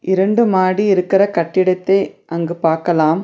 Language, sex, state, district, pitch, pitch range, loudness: Tamil, female, Tamil Nadu, Nilgiris, 185 Hz, 170-195 Hz, -16 LUFS